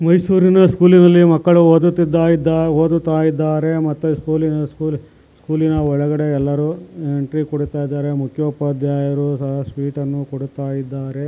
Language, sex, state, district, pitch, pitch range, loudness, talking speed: Kannada, male, Karnataka, Mysore, 155 Hz, 145-165 Hz, -16 LUFS, 75 wpm